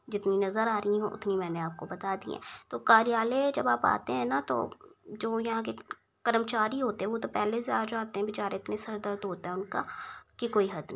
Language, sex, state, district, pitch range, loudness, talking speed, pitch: Hindi, female, Uttar Pradesh, Budaun, 195-225 Hz, -30 LUFS, 235 wpm, 210 Hz